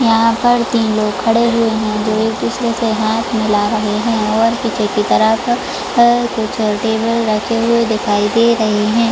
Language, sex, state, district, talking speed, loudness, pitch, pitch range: Hindi, female, Jharkhand, Jamtara, 180 wpm, -15 LUFS, 225 Hz, 215-235 Hz